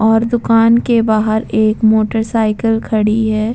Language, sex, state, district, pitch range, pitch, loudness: Hindi, female, Bihar, Vaishali, 215-225 Hz, 220 Hz, -13 LUFS